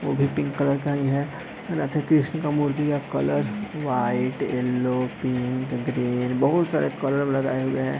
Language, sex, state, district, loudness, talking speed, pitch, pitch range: Hindi, male, Bihar, East Champaran, -24 LUFS, 170 wpm, 135 Hz, 125-145 Hz